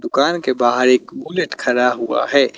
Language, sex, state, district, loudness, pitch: Hindi, male, Chandigarh, Chandigarh, -17 LUFS, 125 Hz